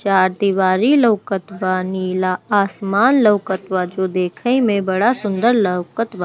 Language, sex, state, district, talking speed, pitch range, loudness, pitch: Bhojpuri, female, Bihar, Gopalganj, 135 wpm, 185-220 Hz, -17 LUFS, 195 Hz